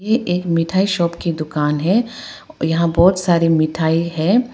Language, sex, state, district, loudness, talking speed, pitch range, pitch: Hindi, female, Arunachal Pradesh, Papum Pare, -17 LUFS, 160 wpm, 160-190 Hz, 170 Hz